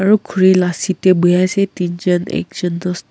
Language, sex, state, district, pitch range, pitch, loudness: Nagamese, female, Nagaland, Kohima, 180-190 Hz, 180 Hz, -15 LUFS